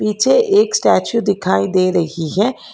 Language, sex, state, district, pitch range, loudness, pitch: Hindi, female, Karnataka, Bangalore, 185-260 Hz, -15 LUFS, 210 Hz